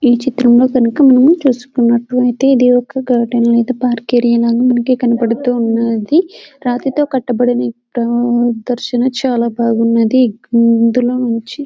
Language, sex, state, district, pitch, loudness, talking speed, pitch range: Telugu, female, Telangana, Karimnagar, 245 Hz, -13 LUFS, 125 wpm, 235-255 Hz